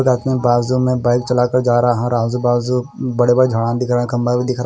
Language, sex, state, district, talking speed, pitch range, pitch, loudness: Hindi, male, Punjab, Kapurthala, 295 wpm, 120-125 Hz, 125 Hz, -16 LUFS